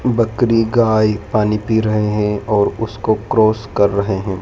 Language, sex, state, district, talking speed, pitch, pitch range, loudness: Hindi, male, Madhya Pradesh, Dhar, 165 wpm, 110 Hz, 105-110 Hz, -16 LUFS